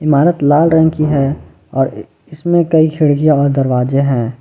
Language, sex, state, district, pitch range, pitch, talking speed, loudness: Hindi, male, Jharkhand, Ranchi, 135-160 Hz, 150 Hz, 165 wpm, -13 LUFS